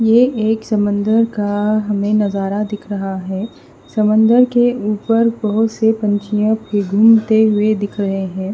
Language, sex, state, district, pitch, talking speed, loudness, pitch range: Hindi, female, Haryana, Rohtak, 215 Hz, 150 wpm, -16 LUFS, 205-220 Hz